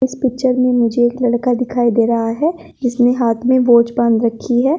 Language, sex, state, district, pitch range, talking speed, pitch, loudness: Hindi, female, Uttar Pradesh, Shamli, 235-255 Hz, 215 wpm, 245 Hz, -15 LUFS